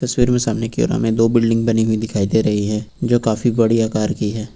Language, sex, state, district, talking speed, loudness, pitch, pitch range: Hindi, male, Uttar Pradesh, Lucknow, 260 wpm, -17 LUFS, 115 Hz, 110-115 Hz